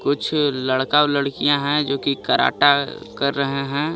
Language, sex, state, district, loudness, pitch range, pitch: Hindi, male, Jharkhand, Garhwa, -19 LUFS, 140-145 Hz, 140 Hz